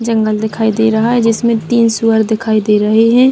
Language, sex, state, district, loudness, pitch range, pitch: Hindi, female, Chhattisgarh, Bilaspur, -12 LUFS, 220-230 Hz, 225 Hz